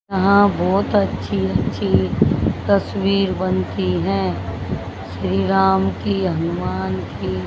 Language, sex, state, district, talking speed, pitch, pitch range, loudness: Hindi, female, Haryana, Jhajjar, 95 wpm, 95 Hz, 95-100 Hz, -19 LUFS